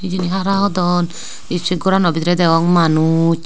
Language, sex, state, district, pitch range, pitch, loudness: Chakma, female, Tripura, Unakoti, 165-185 Hz, 175 Hz, -16 LUFS